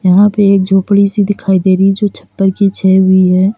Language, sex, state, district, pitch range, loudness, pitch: Hindi, female, Uttar Pradesh, Lalitpur, 190-200 Hz, -10 LUFS, 195 Hz